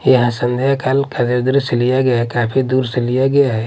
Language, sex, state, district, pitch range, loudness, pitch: Hindi, male, Odisha, Malkangiri, 120-130 Hz, -16 LUFS, 130 Hz